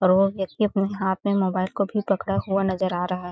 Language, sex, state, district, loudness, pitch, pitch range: Hindi, female, Chhattisgarh, Sarguja, -24 LUFS, 195 Hz, 185-195 Hz